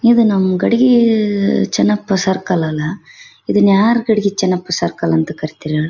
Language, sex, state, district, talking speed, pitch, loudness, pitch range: Kannada, female, Karnataka, Bellary, 120 wpm, 195 Hz, -15 LUFS, 170-220 Hz